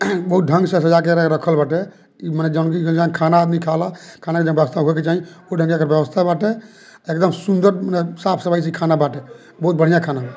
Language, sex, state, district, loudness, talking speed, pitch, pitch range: Bhojpuri, male, Bihar, Muzaffarpur, -17 LUFS, 190 wpm, 170 Hz, 160-180 Hz